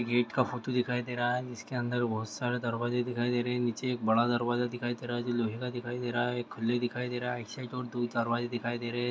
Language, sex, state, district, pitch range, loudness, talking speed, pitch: Maithili, male, Bihar, Araria, 120-125 Hz, -32 LUFS, 310 wpm, 120 Hz